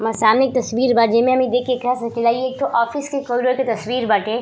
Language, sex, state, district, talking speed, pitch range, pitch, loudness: Bhojpuri, female, Uttar Pradesh, Ghazipur, 300 wpm, 230-255 Hz, 245 Hz, -18 LUFS